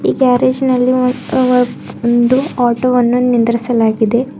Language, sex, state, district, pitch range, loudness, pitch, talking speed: Kannada, female, Karnataka, Bidar, 240-255 Hz, -13 LUFS, 250 Hz, 120 wpm